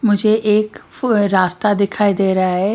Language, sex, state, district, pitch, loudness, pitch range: Hindi, female, Maharashtra, Washim, 205 Hz, -16 LUFS, 190-215 Hz